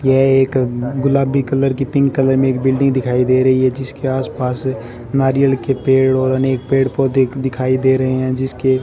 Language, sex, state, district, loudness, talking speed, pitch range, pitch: Hindi, male, Rajasthan, Bikaner, -16 LUFS, 205 wpm, 130-135 Hz, 130 Hz